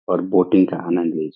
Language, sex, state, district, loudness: Hindi, male, Bihar, Saharsa, -18 LUFS